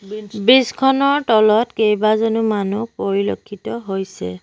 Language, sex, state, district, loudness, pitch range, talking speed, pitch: Assamese, female, Assam, Sonitpur, -17 LUFS, 205-230 Hz, 95 wpm, 215 Hz